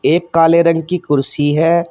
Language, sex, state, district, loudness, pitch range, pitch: Hindi, male, Uttar Pradesh, Shamli, -14 LUFS, 150-170 Hz, 165 Hz